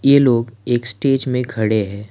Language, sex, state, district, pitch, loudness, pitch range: Hindi, male, Assam, Kamrup Metropolitan, 120 Hz, -17 LUFS, 110-130 Hz